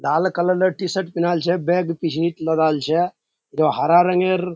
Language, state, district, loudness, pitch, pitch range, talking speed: Surjapuri, Bihar, Kishanganj, -19 LUFS, 175 Hz, 165-180 Hz, 170 wpm